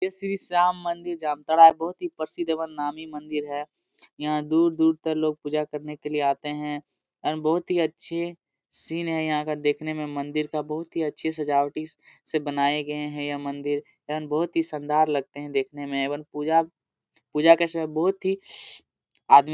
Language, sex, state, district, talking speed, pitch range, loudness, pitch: Hindi, male, Jharkhand, Jamtara, 195 wpm, 150-165 Hz, -25 LUFS, 155 Hz